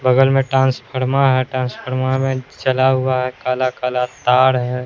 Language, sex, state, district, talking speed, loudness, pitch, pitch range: Hindi, male, Bihar, Katihar, 150 wpm, -17 LUFS, 130 Hz, 125-130 Hz